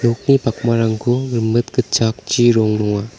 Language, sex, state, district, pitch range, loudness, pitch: Garo, male, Meghalaya, South Garo Hills, 110-120 Hz, -16 LUFS, 115 Hz